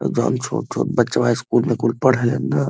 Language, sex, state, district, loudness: Bhojpuri, male, Uttar Pradesh, Varanasi, -19 LUFS